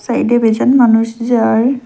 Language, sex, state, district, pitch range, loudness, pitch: Bengali, female, Assam, Hailakandi, 225-250 Hz, -12 LUFS, 240 Hz